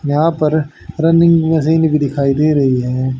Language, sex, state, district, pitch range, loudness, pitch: Hindi, male, Haryana, Jhajjar, 140-160 Hz, -14 LUFS, 155 Hz